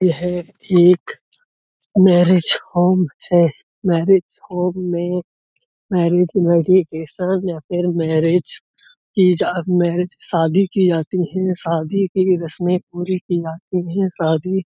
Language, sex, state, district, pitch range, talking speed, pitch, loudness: Hindi, male, Uttar Pradesh, Budaun, 170-185 Hz, 125 wpm, 180 Hz, -17 LUFS